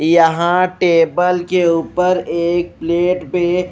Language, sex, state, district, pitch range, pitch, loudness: Hindi, male, Odisha, Malkangiri, 170-180 Hz, 175 Hz, -15 LUFS